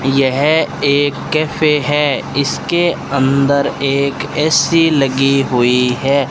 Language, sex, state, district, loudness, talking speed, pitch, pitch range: Hindi, male, Rajasthan, Bikaner, -14 LUFS, 105 wpm, 140 Hz, 135-150 Hz